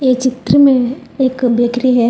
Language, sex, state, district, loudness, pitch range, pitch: Hindi, female, Telangana, Hyderabad, -13 LUFS, 245-260 Hz, 255 Hz